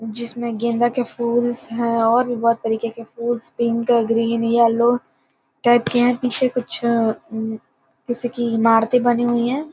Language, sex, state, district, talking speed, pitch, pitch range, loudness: Hindi, female, Bihar, Gopalganj, 165 wpm, 235 Hz, 230-240 Hz, -19 LUFS